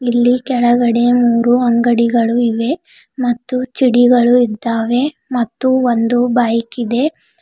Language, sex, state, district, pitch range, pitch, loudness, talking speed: Kannada, female, Karnataka, Bidar, 235-250 Hz, 245 Hz, -14 LUFS, 95 wpm